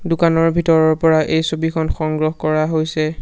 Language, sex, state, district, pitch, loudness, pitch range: Assamese, male, Assam, Sonitpur, 160 Hz, -17 LUFS, 155-165 Hz